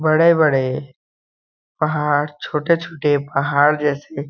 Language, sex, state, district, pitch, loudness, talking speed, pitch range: Hindi, male, Chhattisgarh, Balrampur, 150 Hz, -18 LUFS, 95 wpm, 140-155 Hz